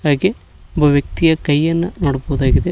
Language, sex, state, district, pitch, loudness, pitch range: Kannada, male, Karnataka, Koppal, 145 Hz, -16 LUFS, 135-160 Hz